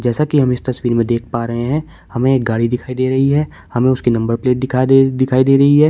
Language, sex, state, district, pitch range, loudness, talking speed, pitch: Hindi, male, Uttar Pradesh, Shamli, 120-135 Hz, -15 LUFS, 285 wpm, 130 Hz